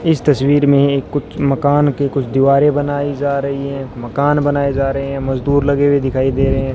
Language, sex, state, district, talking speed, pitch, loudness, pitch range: Hindi, male, Rajasthan, Bikaner, 215 wpm, 140 Hz, -15 LUFS, 135-145 Hz